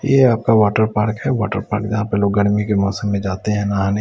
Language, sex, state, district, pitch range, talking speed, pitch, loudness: Hindi, male, Bihar, West Champaran, 100-110 Hz, 255 wpm, 105 Hz, -17 LUFS